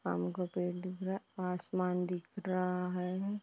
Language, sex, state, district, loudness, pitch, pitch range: Hindi, female, Uttar Pradesh, Deoria, -37 LUFS, 180 Hz, 180-185 Hz